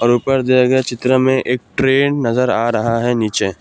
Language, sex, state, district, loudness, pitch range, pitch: Hindi, male, Assam, Kamrup Metropolitan, -15 LUFS, 115-130 Hz, 125 Hz